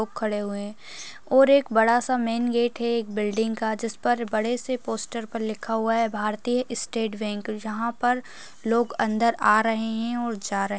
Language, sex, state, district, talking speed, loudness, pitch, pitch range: Hindi, female, Bihar, Darbhanga, 200 wpm, -25 LUFS, 225 Hz, 215-240 Hz